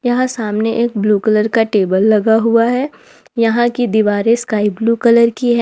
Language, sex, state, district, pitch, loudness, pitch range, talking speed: Hindi, female, Jharkhand, Ranchi, 225 Hz, -14 LUFS, 215-240 Hz, 190 wpm